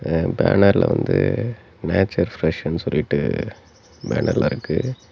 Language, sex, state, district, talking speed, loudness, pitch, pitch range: Tamil, male, Tamil Nadu, Namakkal, 95 wpm, -20 LUFS, 100 Hz, 85-120 Hz